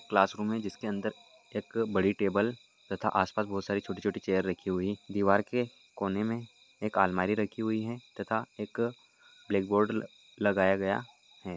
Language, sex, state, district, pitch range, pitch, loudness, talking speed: Hindi, male, Maharashtra, Solapur, 100-110 Hz, 105 Hz, -31 LUFS, 160 wpm